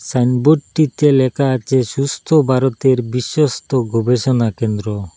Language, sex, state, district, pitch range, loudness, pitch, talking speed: Bengali, male, Assam, Hailakandi, 120-140 Hz, -16 LUFS, 130 Hz, 95 wpm